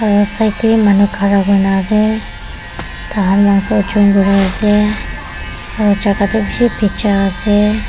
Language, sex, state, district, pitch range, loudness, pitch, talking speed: Nagamese, female, Nagaland, Dimapur, 195-215 Hz, -13 LUFS, 205 Hz, 105 wpm